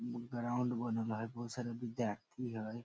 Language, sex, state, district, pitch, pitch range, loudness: Maithili, male, Bihar, Samastipur, 120 Hz, 115-120 Hz, -40 LUFS